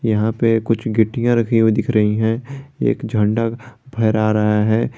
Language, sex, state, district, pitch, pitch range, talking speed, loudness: Hindi, male, Jharkhand, Garhwa, 110 Hz, 110-115 Hz, 170 wpm, -18 LUFS